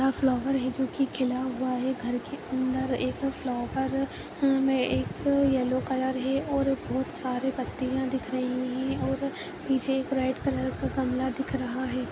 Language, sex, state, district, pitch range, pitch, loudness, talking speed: Kumaoni, female, Uttarakhand, Uttarkashi, 255-270 Hz, 260 Hz, -28 LUFS, 170 wpm